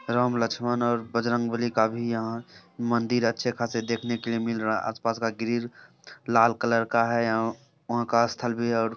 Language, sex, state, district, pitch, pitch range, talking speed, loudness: Hindi, male, Bihar, Samastipur, 115 Hz, 115-120 Hz, 200 wpm, -26 LUFS